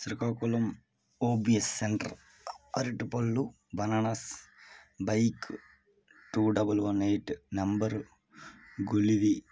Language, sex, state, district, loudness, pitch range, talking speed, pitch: Telugu, male, Andhra Pradesh, Srikakulam, -31 LUFS, 105-115 Hz, 75 wpm, 110 Hz